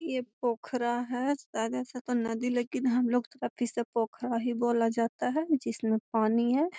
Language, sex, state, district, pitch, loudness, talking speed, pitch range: Magahi, female, Bihar, Gaya, 240 Hz, -30 LUFS, 185 wpm, 230-255 Hz